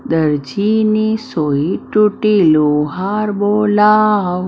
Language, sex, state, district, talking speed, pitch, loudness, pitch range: Gujarati, female, Maharashtra, Mumbai Suburban, 65 wpm, 205 Hz, -14 LUFS, 160-215 Hz